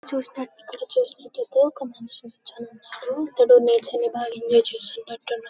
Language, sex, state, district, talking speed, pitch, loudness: Telugu, female, Telangana, Karimnagar, 130 wpm, 255 Hz, -21 LUFS